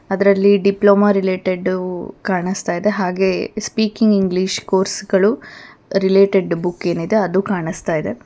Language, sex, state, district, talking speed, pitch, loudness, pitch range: Kannada, female, Karnataka, Bangalore, 95 wpm, 195 Hz, -17 LUFS, 185-200 Hz